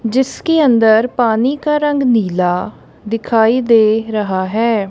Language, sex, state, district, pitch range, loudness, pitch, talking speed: Hindi, female, Punjab, Kapurthala, 215-250 Hz, -14 LUFS, 225 Hz, 120 wpm